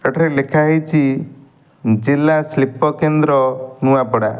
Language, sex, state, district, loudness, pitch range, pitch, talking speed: Odia, male, Odisha, Nuapada, -16 LUFS, 130-155 Hz, 140 Hz, 95 wpm